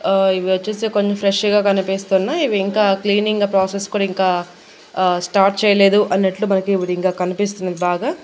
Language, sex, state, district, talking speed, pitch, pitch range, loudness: Telugu, female, Andhra Pradesh, Annamaya, 160 wpm, 195 Hz, 185-205 Hz, -17 LUFS